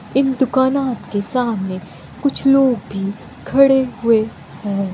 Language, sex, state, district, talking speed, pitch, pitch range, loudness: Hindi, female, Bihar, Kishanganj, 135 wpm, 230 Hz, 195-265 Hz, -17 LUFS